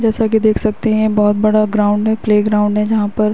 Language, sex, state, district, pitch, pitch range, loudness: Hindi, female, Uttar Pradesh, Varanasi, 215 Hz, 210-220 Hz, -14 LUFS